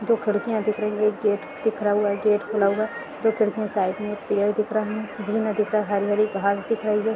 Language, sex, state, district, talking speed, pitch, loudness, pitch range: Hindi, female, Chhattisgarh, Sarguja, 260 wpm, 210 Hz, -24 LUFS, 205-215 Hz